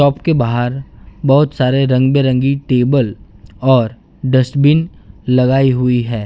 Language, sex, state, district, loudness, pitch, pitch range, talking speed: Hindi, male, Gujarat, Gandhinagar, -14 LUFS, 130 Hz, 120-140 Hz, 125 wpm